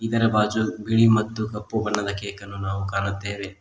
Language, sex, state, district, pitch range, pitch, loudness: Kannada, male, Karnataka, Koppal, 100-110 Hz, 105 Hz, -24 LUFS